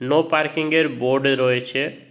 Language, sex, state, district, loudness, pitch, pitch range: Bengali, male, West Bengal, Jhargram, -20 LUFS, 145 Hz, 130-155 Hz